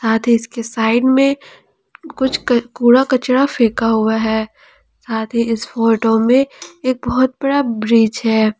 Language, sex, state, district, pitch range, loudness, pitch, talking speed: Hindi, female, Jharkhand, Palamu, 225-260 Hz, -15 LUFS, 235 Hz, 145 wpm